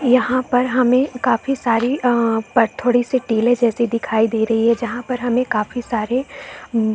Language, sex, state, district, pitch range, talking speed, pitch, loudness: Hindi, female, Chhattisgarh, Bastar, 225-255 Hz, 170 wpm, 245 Hz, -18 LUFS